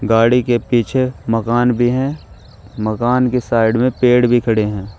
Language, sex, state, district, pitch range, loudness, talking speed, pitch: Hindi, male, Uttar Pradesh, Shamli, 110-125 Hz, -15 LUFS, 170 wpm, 120 Hz